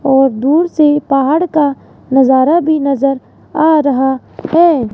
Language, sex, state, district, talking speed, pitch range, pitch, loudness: Hindi, female, Rajasthan, Jaipur, 135 wpm, 270-315 Hz, 280 Hz, -12 LUFS